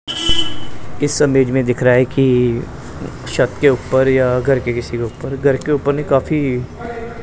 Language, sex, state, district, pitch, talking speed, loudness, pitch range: Hindi, male, Punjab, Pathankot, 130 Hz, 165 wpm, -16 LUFS, 125-140 Hz